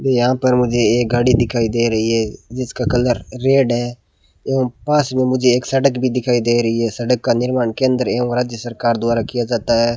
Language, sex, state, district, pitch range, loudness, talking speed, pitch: Hindi, male, Rajasthan, Bikaner, 115-125 Hz, -17 LUFS, 210 wpm, 120 Hz